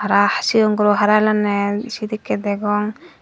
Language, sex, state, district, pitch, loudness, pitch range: Chakma, female, Tripura, Dhalai, 210 Hz, -18 LUFS, 205-215 Hz